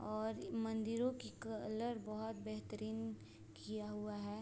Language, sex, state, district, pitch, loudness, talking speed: Hindi, female, Bihar, Sitamarhi, 215 Hz, -44 LUFS, 120 wpm